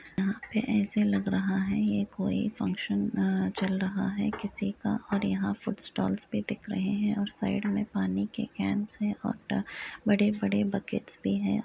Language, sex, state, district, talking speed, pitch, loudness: Hindi, female, Uttar Pradesh, Muzaffarnagar, 180 wpm, 200 Hz, -30 LUFS